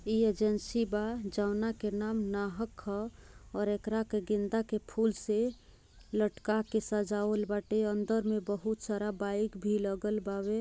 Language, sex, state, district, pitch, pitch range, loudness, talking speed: Bhojpuri, female, Bihar, Gopalganj, 210 Hz, 205-220 Hz, -33 LUFS, 155 wpm